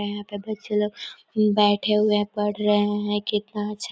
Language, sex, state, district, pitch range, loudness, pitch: Hindi, female, Chhattisgarh, Korba, 205-210 Hz, -23 LUFS, 210 Hz